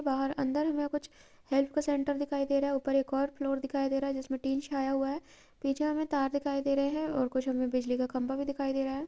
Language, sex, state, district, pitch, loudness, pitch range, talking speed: Maithili, female, Bihar, Purnia, 275 Hz, -32 LUFS, 270-285 Hz, 265 wpm